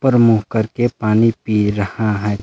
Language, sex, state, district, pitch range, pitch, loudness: Hindi, male, Jharkhand, Palamu, 105-115 Hz, 110 Hz, -16 LUFS